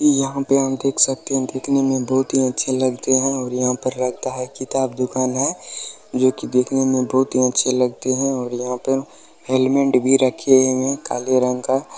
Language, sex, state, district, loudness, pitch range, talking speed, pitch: Hindi, male, Bihar, Bhagalpur, -19 LUFS, 130-135 Hz, 200 wpm, 130 Hz